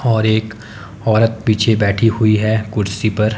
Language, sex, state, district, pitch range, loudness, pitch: Hindi, male, Himachal Pradesh, Shimla, 105-110 Hz, -16 LUFS, 110 Hz